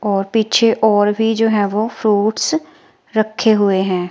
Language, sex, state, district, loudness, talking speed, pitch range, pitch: Hindi, female, Himachal Pradesh, Shimla, -16 LUFS, 160 wpm, 205-225 Hz, 215 Hz